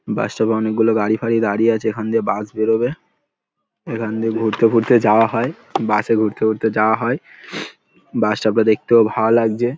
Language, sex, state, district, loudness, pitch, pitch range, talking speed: Bengali, male, West Bengal, Paschim Medinipur, -17 LUFS, 110 Hz, 110-115 Hz, 195 wpm